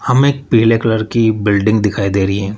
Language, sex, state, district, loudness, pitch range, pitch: Hindi, male, Rajasthan, Jaipur, -14 LUFS, 100-115 Hz, 110 Hz